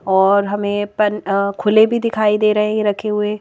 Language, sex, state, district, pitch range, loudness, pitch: Hindi, female, Madhya Pradesh, Bhopal, 200-215 Hz, -16 LUFS, 210 Hz